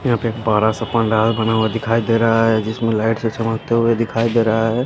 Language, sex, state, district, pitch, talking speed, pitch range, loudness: Hindi, male, Himachal Pradesh, Shimla, 115 Hz, 260 wpm, 110-115 Hz, -17 LUFS